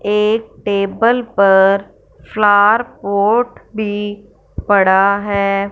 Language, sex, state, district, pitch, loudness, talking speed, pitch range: Hindi, female, Punjab, Fazilka, 205 Hz, -14 LUFS, 85 wpm, 200-215 Hz